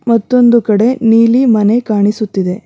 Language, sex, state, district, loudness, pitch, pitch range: Kannada, female, Karnataka, Bangalore, -11 LUFS, 225 Hz, 210-240 Hz